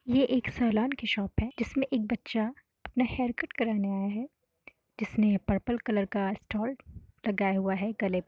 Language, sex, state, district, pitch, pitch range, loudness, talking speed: Hindi, female, Uttar Pradesh, Varanasi, 225 Hz, 200-250 Hz, -30 LUFS, 190 wpm